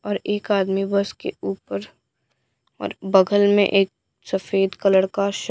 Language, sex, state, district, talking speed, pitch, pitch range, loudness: Hindi, female, Bihar, Patna, 150 wpm, 195 Hz, 190-205 Hz, -21 LUFS